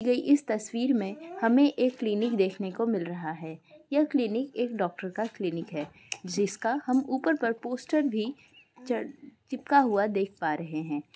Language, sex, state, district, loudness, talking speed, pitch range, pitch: Hindi, female, Uttar Pradesh, Muzaffarnagar, -29 LUFS, 175 wpm, 195-265 Hz, 230 Hz